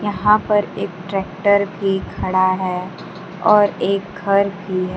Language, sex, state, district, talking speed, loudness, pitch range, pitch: Hindi, female, Bihar, Kaimur, 145 wpm, -18 LUFS, 185-205 Hz, 195 Hz